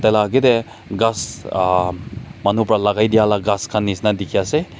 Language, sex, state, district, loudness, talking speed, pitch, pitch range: Nagamese, male, Nagaland, Kohima, -18 LUFS, 150 wpm, 105 Hz, 100-115 Hz